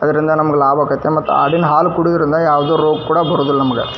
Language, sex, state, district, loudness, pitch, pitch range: Kannada, male, Karnataka, Dharwad, -14 LUFS, 155 Hz, 145-160 Hz